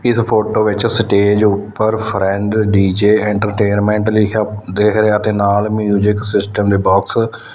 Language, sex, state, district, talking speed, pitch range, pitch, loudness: Punjabi, male, Punjab, Fazilka, 145 wpm, 100-110 Hz, 105 Hz, -14 LUFS